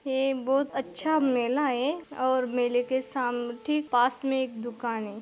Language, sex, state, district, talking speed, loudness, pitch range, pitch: Hindi, female, Maharashtra, Aurangabad, 170 wpm, -28 LUFS, 245-270 Hz, 260 Hz